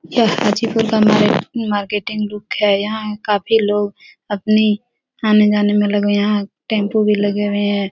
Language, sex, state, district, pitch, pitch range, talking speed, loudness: Hindi, female, Bihar, Jahanabad, 210 Hz, 205-215 Hz, 165 wpm, -16 LUFS